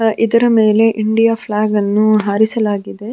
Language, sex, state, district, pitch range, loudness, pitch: Kannada, female, Karnataka, Dharwad, 210-225 Hz, -14 LUFS, 215 Hz